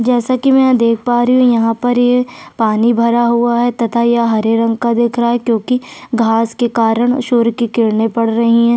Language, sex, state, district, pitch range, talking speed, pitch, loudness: Hindi, female, Chhattisgarh, Sukma, 230-245 Hz, 225 wpm, 235 Hz, -13 LUFS